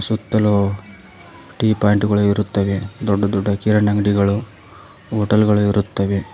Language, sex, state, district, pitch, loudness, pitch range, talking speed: Kannada, male, Karnataka, Koppal, 105 Hz, -18 LUFS, 100-105 Hz, 115 wpm